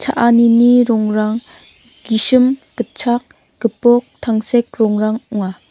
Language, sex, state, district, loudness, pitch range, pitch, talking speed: Garo, female, Meghalaya, North Garo Hills, -15 LUFS, 220-245 Hz, 235 Hz, 85 wpm